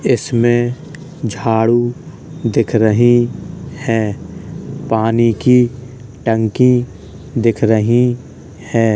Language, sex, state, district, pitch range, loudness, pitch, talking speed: Hindi, male, Uttar Pradesh, Hamirpur, 115-125 Hz, -15 LUFS, 120 Hz, 75 wpm